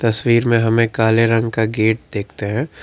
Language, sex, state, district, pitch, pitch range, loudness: Hindi, male, Karnataka, Bangalore, 115 Hz, 110-115 Hz, -17 LUFS